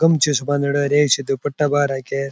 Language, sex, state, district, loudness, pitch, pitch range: Rajasthani, male, Rajasthan, Churu, -18 LUFS, 145 Hz, 140-145 Hz